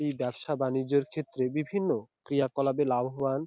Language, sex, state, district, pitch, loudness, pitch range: Bengali, male, West Bengal, Dakshin Dinajpur, 140 Hz, -30 LUFS, 130-150 Hz